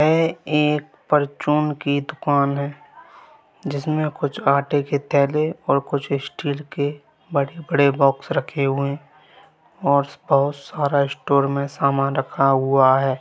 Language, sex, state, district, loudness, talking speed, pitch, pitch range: Hindi, male, Bihar, Gaya, -21 LUFS, 130 wpm, 140 Hz, 140-150 Hz